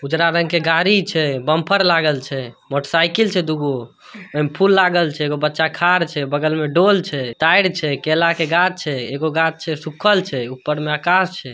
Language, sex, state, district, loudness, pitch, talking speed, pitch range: Hindi, male, Bihar, Samastipur, -17 LUFS, 160 Hz, 210 wpm, 150-180 Hz